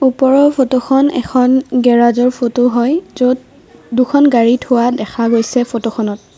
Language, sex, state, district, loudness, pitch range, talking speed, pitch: Assamese, female, Assam, Kamrup Metropolitan, -13 LUFS, 235-265 Hz, 120 wpm, 250 Hz